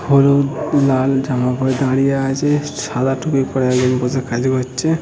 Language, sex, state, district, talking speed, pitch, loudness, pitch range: Bengali, male, West Bengal, North 24 Parganas, 155 wpm, 135 Hz, -17 LUFS, 130-140 Hz